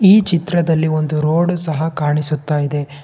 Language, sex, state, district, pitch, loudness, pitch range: Kannada, male, Karnataka, Bangalore, 155 Hz, -16 LUFS, 150-170 Hz